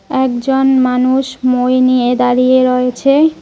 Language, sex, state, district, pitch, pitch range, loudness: Bengali, female, West Bengal, Cooch Behar, 255 Hz, 250-265 Hz, -12 LUFS